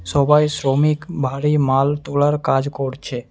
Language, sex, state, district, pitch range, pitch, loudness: Bengali, male, West Bengal, Alipurduar, 135-150 Hz, 140 Hz, -18 LUFS